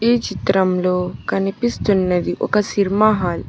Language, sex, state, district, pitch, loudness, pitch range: Telugu, female, Telangana, Hyderabad, 195 Hz, -18 LUFS, 185-215 Hz